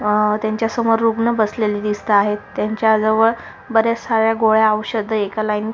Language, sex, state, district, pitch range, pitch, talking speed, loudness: Marathi, female, Maharashtra, Sindhudurg, 210-225 Hz, 220 Hz, 145 wpm, -17 LUFS